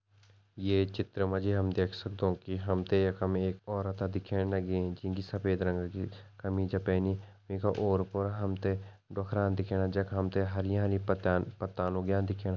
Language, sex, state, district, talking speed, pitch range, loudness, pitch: Hindi, male, Uttarakhand, Tehri Garhwal, 155 wpm, 95-100 Hz, -33 LUFS, 95 Hz